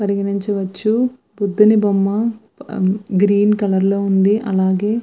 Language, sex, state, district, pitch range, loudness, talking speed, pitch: Telugu, female, Andhra Pradesh, Visakhapatnam, 195-215 Hz, -17 LUFS, 105 wpm, 205 Hz